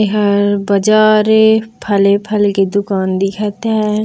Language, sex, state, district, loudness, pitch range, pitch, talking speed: Chhattisgarhi, female, Chhattisgarh, Raigarh, -13 LUFS, 200-215 Hz, 210 Hz, 105 wpm